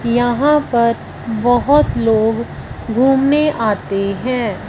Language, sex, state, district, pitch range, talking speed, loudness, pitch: Hindi, female, Punjab, Fazilka, 225-270 Hz, 90 wpm, -15 LUFS, 235 Hz